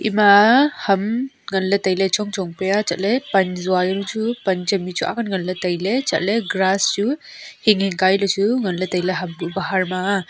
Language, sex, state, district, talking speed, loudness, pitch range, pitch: Wancho, female, Arunachal Pradesh, Longding, 185 wpm, -19 LUFS, 185-215 Hz, 195 Hz